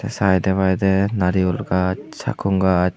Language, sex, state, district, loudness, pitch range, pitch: Chakma, male, Tripura, Unakoti, -19 LUFS, 95-100 Hz, 95 Hz